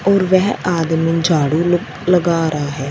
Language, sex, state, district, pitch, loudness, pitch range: Hindi, female, Punjab, Fazilka, 165 Hz, -16 LUFS, 160-180 Hz